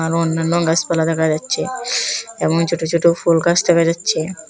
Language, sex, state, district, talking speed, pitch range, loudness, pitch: Bengali, female, Assam, Hailakandi, 160 wpm, 160-170 Hz, -17 LUFS, 165 Hz